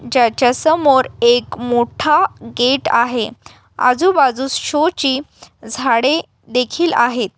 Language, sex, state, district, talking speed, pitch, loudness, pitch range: Marathi, female, Maharashtra, Aurangabad, 90 wpm, 250 Hz, -15 LUFS, 240-275 Hz